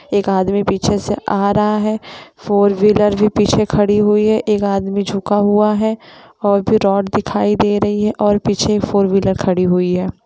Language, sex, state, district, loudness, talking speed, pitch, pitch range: Hindi, female, Jharkhand, Jamtara, -15 LUFS, 180 wpm, 205 Hz, 200-210 Hz